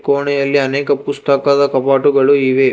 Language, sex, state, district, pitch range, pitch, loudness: Kannada, male, Karnataka, Bangalore, 135-140 Hz, 140 Hz, -14 LUFS